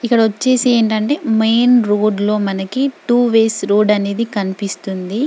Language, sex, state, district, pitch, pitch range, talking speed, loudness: Telugu, female, Telangana, Karimnagar, 220 Hz, 205-240 Hz, 135 wpm, -15 LUFS